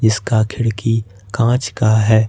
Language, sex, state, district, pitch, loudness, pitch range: Hindi, male, Jharkhand, Ranchi, 110 Hz, -16 LUFS, 110-115 Hz